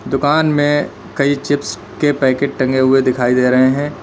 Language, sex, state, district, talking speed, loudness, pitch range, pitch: Hindi, male, Uttar Pradesh, Lalitpur, 180 wpm, -15 LUFS, 130-145 Hz, 140 Hz